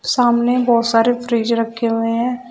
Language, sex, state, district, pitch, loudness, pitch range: Hindi, female, Uttar Pradesh, Shamli, 235 Hz, -16 LUFS, 230-245 Hz